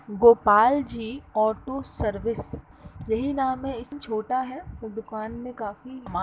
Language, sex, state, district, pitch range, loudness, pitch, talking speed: Hindi, female, Uttar Pradesh, Etah, 220-260 Hz, -25 LUFS, 230 Hz, 155 wpm